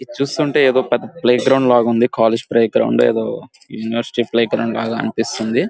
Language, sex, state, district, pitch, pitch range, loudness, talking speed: Telugu, male, Andhra Pradesh, Guntur, 115 Hz, 115-130 Hz, -16 LUFS, 160 wpm